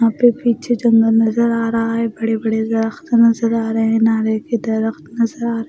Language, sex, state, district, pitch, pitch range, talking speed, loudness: Hindi, female, Bihar, West Champaran, 230 Hz, 225-235 Hz, 210 wpm, -16 LUFS